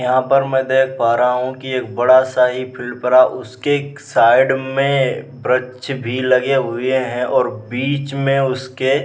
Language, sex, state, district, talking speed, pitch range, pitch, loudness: Hindi, male, Bihar, Vaishali, 180 wpm, 125-135 Hz, 130 Hz, -17 LUFS